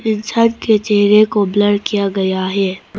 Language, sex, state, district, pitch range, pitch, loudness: Hindi, female, Arunachal Pradesh, Papum Pare, 195-215 Hz, 205 Hz, -14 LUFS